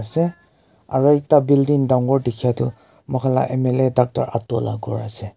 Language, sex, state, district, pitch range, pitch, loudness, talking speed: Nagamese, male, Nagaland, Kohima, 120-140 Hz, 130 Hz, -19 LUFS, 135 wpm